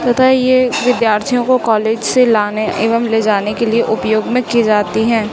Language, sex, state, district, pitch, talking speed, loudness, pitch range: Hindi, female, Chhattisgarh, Raipur, 230 Hz, 180 wpm, -13 LUFS, 215-250 Hz